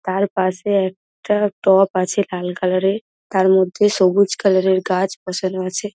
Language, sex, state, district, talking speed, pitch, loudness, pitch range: Bengali, female, West Bengal, Dakshin Dinajpur, 150 wpm, 190 Hz, -18 LUFS, 185-200 Hz